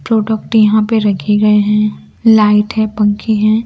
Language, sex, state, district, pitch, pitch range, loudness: Hindi, female, Bihar, Kaimur, 215 Hz, 210-220 Hz, -12 LUFS